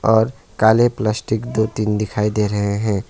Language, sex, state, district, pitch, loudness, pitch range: Hindi, male, West Bengal, Alipurduar, 110 Hz, -18 LUFS, 105-110 Hz